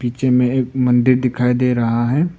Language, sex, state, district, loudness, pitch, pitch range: Hindi, male, Arunachal Pradesh, Papum Pare, -16 LUFS, 125 Hz, 125-130 Hz